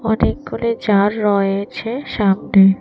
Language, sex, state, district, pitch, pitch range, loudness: Bengali, female, Tripura, West Tripura, 205 Hz, 195-225 Hz, -17 LUFS